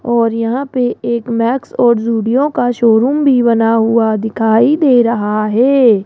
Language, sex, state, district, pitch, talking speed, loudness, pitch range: Hindi, female, Rajasthan, Jaipur, 235 Hz, 160 wpm, -13 LUFS, 225-250 Hz